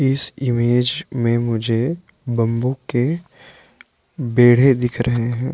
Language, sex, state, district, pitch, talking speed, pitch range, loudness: Hindi, male, Arunachal Pradesh, Lower Dibang Valley, 125 Hz, 110 wpm, 120-135 Hz, -18 LUFS